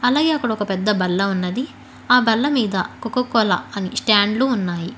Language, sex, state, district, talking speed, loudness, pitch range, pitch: Telugu, female, Telangana, Hyderabad, 170 wpm, -19 LUFS, 195-250 Hz, 220 Hz